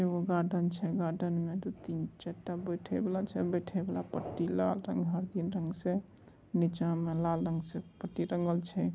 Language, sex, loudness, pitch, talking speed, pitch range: Angika, male, -34 LUFS, 175 Hz, 200 wpm, 165-180 Hz